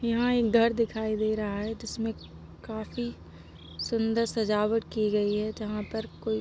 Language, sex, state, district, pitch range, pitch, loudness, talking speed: Hindi, female, Jharkhand, Sahebganj, 210-230 Hz, 220 Hz, -29 LUFS, 160 wpm